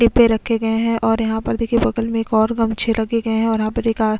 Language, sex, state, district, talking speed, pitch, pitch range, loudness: Hindi, female, Chhattisgarh, Sukma, 300 wpm, 225 Hz, 220-230 Hz, -18 LUFS